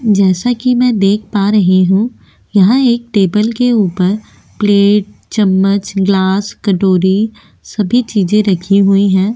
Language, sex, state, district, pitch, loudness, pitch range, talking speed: Hindi, female, Goa, North and South Goa, 200 Hz, -12 LUFS, 195-215 Hz, 135 wpm